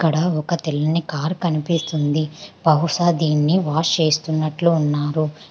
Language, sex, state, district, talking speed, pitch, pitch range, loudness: Telugu, female, Telangana, Hyderabad, 110 wpm, 155 Hz, 155-170 Hz, -20 LUFS